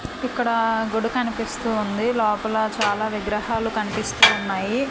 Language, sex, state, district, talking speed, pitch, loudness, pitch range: Telugu, female, Andhra Pradesh, Manyam, 110 wpm, 220 Hz, -22 LUFS, 210-230 Hz